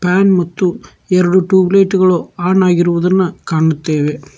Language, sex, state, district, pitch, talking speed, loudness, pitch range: Kannada, male, Karnataka, Bangalore, 180 Hz, 125 wpm, -13 LUFS, 175-190 Hz